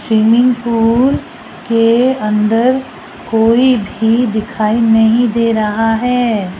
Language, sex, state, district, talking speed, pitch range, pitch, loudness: Hindi, female, Rajasthan, Jaipur, 100 wpm, 220-245 Hz, 230 Hz, -13 LUFS